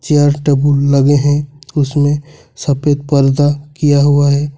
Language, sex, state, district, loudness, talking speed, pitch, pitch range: Hindi, male, Jharkhand, Ranchi, -13 LUFS, 130 wpm, 145 Hz, 140-145 Hz